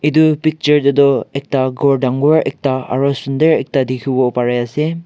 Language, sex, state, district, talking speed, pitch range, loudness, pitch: Nagamese, male, Nagaland, Kohima, 165 wpm, 130-150 Hz, -15 LUFS, 140 Hz